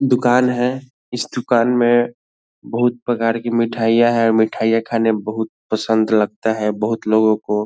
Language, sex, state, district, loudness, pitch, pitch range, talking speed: Hindi, male, Bihar, Lakhisarai, -17 LUFS, 115 Hz, 110-120 Hz, 155 wpm